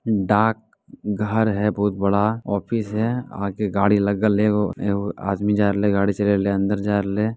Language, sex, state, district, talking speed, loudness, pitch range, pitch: Hindi, male, Bihar, Bhagalpur, 165 wpm, -21 LUFS, 100-105 Hz, 105 Hz